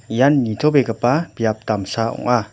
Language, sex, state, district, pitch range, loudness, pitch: Garo, male, Meghalaya, West Garo Hills, 110-140 Hz, -18 LUFS, 120 Hz